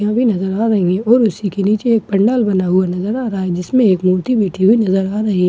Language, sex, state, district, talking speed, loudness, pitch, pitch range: Hindi, female, Bihar, Katihar, 275 wpm, -15 LUFS, 200 Hz, 185-225 Hz